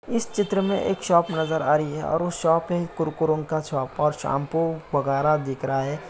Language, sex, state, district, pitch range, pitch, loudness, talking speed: Hindi, male, Uttar Pradesh, Muzaffarnagar, 150-170 Hz, 160 Hz, -24 LUFS, 215 wpm